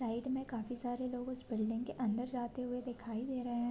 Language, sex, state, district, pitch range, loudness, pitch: Hindi, female, Uttarakhand, Tehri Garhwal, 235-250 Hz, -35 LUFS, 245 Hz